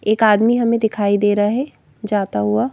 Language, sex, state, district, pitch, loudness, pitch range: Hindi, female, Madhya Pradesh, Bhopal, 210 Hz, -17 LUFS, 205-230 Hz